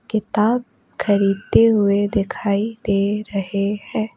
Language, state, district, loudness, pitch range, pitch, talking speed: Hindi, Arunachal Pradesh, Papum Pare, -19 LUFS, 200-220 Hz, 205 Hz, 100 wpm